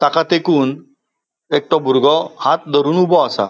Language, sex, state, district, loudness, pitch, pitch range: Konkani, male, Goa, North and South Goa, -15 LUFS, 160 Hz, 145-175 Hz